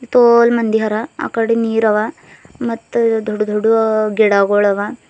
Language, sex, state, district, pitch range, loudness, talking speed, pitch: Kannada, female, Karnataka, Bidar, 215-230 Hz, -15 LUFS, 115 wpm, 220 Hz